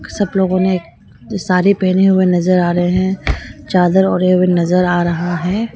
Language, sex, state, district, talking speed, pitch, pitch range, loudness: Hindi, female, Arunachal Pradesh, Lower Dibang Valley, 175 wpm, 180 Hz, 175-190 Hz, -14 LUFS